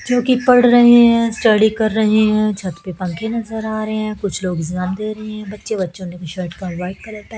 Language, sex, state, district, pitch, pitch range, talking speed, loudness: Hindi, female, Haryana, Jhajjar, 215 Hz, 185-220 Hz, 235 wpm, -16 LUFS